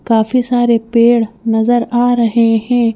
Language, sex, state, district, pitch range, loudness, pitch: Hindi, female, Madhya Pradesh, Bhopal, 225-240 Hz, -13 LUFS, 235 Hz